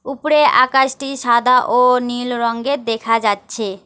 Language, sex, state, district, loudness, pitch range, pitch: Bengali, female, West Bengal, Alipurduar, -16 LUFS, 230-265 Hz, 245 Hz